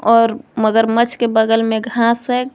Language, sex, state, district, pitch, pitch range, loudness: Hindi, female, Jharkhand, Garhwa, 230 Hz, 225-240 Hz, -15 LUFS